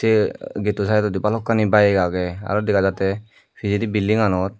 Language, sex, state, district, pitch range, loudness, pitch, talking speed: Chakma, male, Tripura, Dhalai, 95-110 Hz, -20 LUFS, 105 Hz, 155 wpm